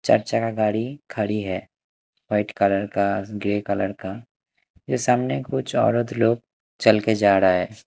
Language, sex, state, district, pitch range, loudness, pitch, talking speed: Hindi, male, Chandigarh, Chandigarh, 100-115 Hz, -22 LUFS, 105 Hz, 160 wpm